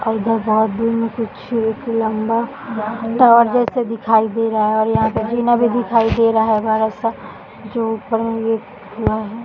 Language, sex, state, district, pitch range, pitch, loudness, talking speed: Hindi, female, Bihar, Jahanabad, 220-230 Hz, 225 Hz, -17 LUFS, 160 wpm